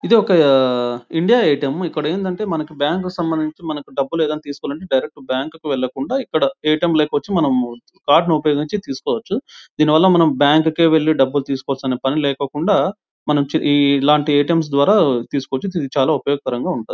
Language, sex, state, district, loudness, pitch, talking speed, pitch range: Telugu, male, Andhra Pradesh, Anantapur, -18 LUFS, 150 Hz, 155 wpm, 140-165 Hz